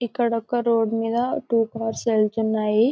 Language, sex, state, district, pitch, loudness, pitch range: Telugu, male, Telangana, Karimnagar, 225 Hz, -22 LUFS, 220-235 Hz